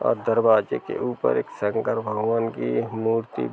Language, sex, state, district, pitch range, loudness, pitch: Hindi, male, Uttar Pradesh, Jalaun, 105-115 Hz, -24 LUFS, 110 Hz